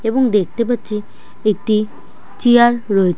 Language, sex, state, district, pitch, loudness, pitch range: Bengali, male, West Bengal, Dakshin Dinajpur, 220 Hz, -16 LUFS, 210-240 Hz